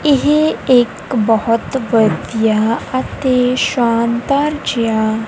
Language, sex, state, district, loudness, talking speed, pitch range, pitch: Punjabi, female, Punjab, Kapurthala, -15 LUFS, 80 wpm, 225-265 Hz, 235 Hz